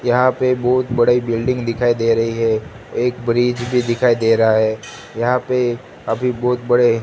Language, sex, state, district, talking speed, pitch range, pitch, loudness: Hindi, male, Gujarat, Gandhinagar, 180 wpm, 115-125 Hz, 120 Hz, -17 LUFS